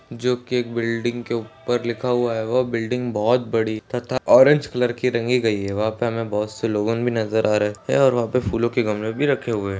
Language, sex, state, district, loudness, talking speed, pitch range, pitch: Hindi, male, Maharashtra, Solapur, -21 LUFS, 240 wpm, 110-125 Hz, 120 Hz